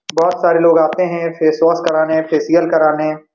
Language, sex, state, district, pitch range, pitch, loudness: Hindi, male, Bihar, Supaul, 155-170 Hz, 165 Hz, -14 LUFS